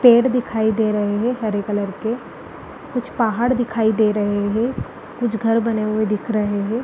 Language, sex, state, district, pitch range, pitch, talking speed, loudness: Hindi, female, Uttarakhand, Uttarkashi, 210-235 Hz, 220 Hz, 185 wpm, -20 LUFS